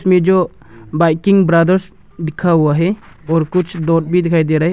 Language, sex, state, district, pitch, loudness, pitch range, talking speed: Hindi, male, Arunachal Pradesh, Longding, 170 Hz, -14 LUFS, 160-180 Hz, 190 wpm